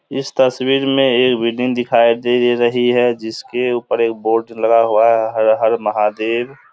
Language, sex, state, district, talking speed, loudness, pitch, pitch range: Hindi, male, Bihar, Samastipur, 170 wpm, -15 LUFS, 120 Hz, 115-125 Hz